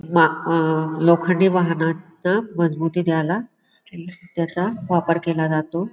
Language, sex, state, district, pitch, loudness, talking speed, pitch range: Marathi, female, Maharashtra, Pune, 170 Hz, -20 LUFS, 100 wpm, 165-180 Hz